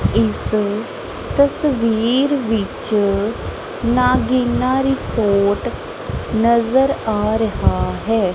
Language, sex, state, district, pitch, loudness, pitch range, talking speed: Punjabi, female, Punjab, Kapurthala, 225 Hz, -18 LUFS, 210-255 Hz, 65 wpm